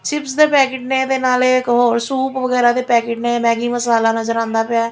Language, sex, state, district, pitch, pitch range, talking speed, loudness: Punjabi, female, Punjab, Fazilka, 240 Hz, 235-265 Hz, 220 wpm, -16 LUFS